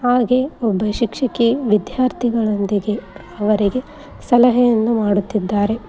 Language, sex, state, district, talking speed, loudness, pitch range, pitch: Kannada, female, Karnataka, Koppal, 70 wpm, -17 LUFS, 210-245 Hz, 230 Hz